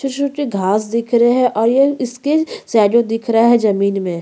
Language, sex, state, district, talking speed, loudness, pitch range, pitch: Hindi, female, Chhattisgarh, Korba, 200 wpm, -15 LUFS, 215-270 Hz, 235 Hz